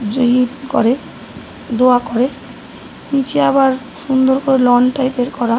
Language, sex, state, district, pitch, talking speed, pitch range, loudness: Bengali, female, West Bengal, North 24 Parganas, 255 Hz, 130 wpm, 245-265 Hz, -15 LUFS